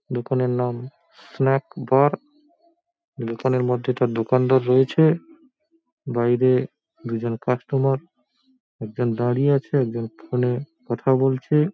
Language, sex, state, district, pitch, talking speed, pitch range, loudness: Bengali, male, West Bengal, Paschim Medinipur, 130 Hz, 100 wpm, 125-160 Hz, -22 LUFS